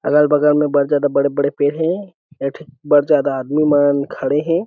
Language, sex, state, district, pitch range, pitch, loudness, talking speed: Chhattisgarhi, male, Chhattisgarh, Sarguja, 140-150 Hz, 145 Hz, -16 LUFS, 190 wpm